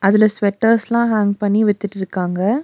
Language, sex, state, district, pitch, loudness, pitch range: Tamil, female, Tamil Nadu, Nilgiris, 205 Hz, -17 LUFS, 200-220 Hz